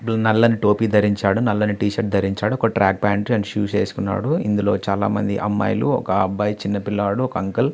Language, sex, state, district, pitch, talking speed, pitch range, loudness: Telugu, male, Andhra Pradesh, Visakhapatnam, 105 Hz, 140 wpm, 100-110 Hz, -20 LUFS